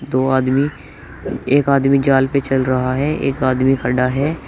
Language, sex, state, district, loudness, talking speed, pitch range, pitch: Hindi, male, Uttar Pradesh, Shamli, -17 LUFS, 175 wpm, 130-140 Hz, 135 Hz